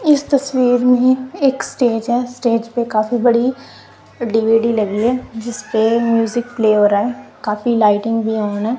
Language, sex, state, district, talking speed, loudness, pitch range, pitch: Hindi, female, Punjab, Kapurthala, 165 wpm, -16 LUFS, 220-250 Hz, 235 Hz